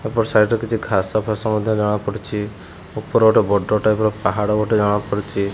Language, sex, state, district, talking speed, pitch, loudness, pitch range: Odia, male, Odisha, Khordha, 175 wpm, 105 Hz, -19 LUFS, 105-110 Hz